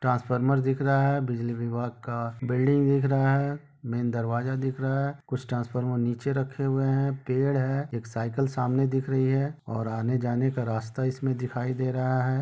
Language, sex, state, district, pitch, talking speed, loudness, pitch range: Hindi, male, Jharkhand, Sahebganj, 130 Hz, 195 wpm, -27 LUFS, 120-135 Hz